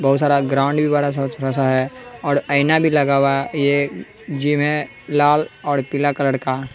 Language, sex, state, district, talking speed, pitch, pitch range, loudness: Hindi, male, Bihar, West Champaran, 215 wpm, 140 Hz, 135-145 Hz, -18 LUFS